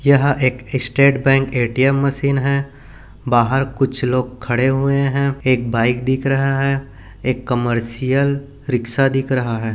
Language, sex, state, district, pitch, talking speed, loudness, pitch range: Hindi, male, Chhattisgarh, Bilaspur, 135 Hz, 150 wpm, -18 LUFS, 125-140 Hz